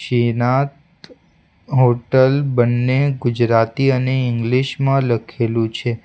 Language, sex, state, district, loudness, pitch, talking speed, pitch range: Gujarati, male, Gujarat, Valsad, -17 LUFS, 130 Hz, 90 wpm, 120-135 Hz